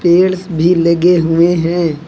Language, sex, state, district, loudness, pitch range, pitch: Hindi, male, Uttar Pradesh, Lucknow, -12 LUFS, 165-175 Hz, 170 Hz